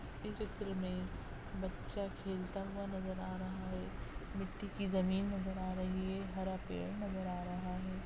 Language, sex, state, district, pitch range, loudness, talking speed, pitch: Hindi, female, Chhattisgarh, Rajnandgaon, 185-195 Hz, -42 LUFS, 170 wpm, 190 Hz